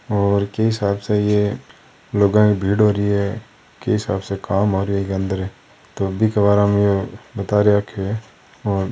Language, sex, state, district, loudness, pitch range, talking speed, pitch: Hindi, male, Rajasthan, Churu, -19 LUFS, 100-105 Hz, 180 wpm, 100 Hz